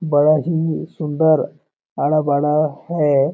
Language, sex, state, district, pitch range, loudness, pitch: Hindi, male, Chhattisgarh, Balrampur, 145-160 Hz, -18 LUFS, 155 Hz